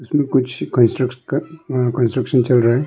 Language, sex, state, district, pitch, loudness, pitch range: Hindi, male, Arunachal Pradesh, Longding, 125 Hz, -18 LUFS, 125-135 Hz